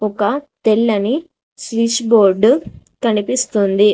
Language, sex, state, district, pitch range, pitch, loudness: Telugu, female, Telangana, Mahabubabad, 210-250 Hz, 225 Hz, -16 LUFS